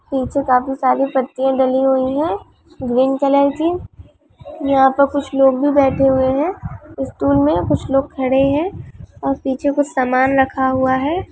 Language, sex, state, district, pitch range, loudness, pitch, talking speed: Hindi, female, Bihar, Vaishali, 265-285 Hz, -17 LUFS, 270 Hz, 165 wpm